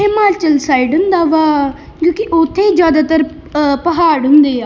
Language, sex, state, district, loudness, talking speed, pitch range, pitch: Punjabi, male, Punjab, Kapurthala, -12 LUFS, 140 wpm, 295-345 Hz, 320 Hz